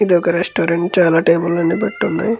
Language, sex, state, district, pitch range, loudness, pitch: Telugu, male, Andhra Pradesh, Guntur, 165-175 Hz, -16 LUFS, 170 Hz